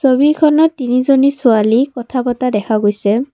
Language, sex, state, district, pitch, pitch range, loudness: Assamese, female, Assam, Kamrup Metropolitan, 250 Hz, 230-275 Hz, -13 LUFS